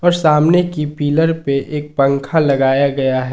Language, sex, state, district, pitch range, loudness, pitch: Hindi, male, Jharkhand, Ranchi, 140-160 Hz, -15 LUFS, 145 Hz